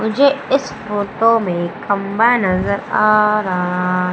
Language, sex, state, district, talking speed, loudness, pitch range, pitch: Hindi, female, Madhya Pradesh, Umaria, 115 wpm, -16 LUFS, 185-225 Hz, 210 Hz